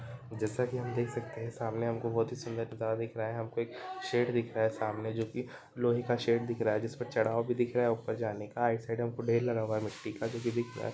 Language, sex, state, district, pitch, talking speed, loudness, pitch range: Hindi, female, Jharkhand, Sahebganj, 115 Hz, 295 wpm, -34 LUFS, 115-120 Hz